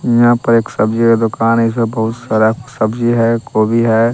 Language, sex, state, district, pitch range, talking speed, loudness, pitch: Hindi, male, Bihar, West Champaran, 110-120 Hz, 205 wpm, -13 LUFS, 115 Hz